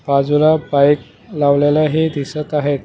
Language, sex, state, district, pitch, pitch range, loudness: Marathi, male, Maharashtra, Mumbai Suburban, 145 Hz, 140-155 Hz, -15 LUFS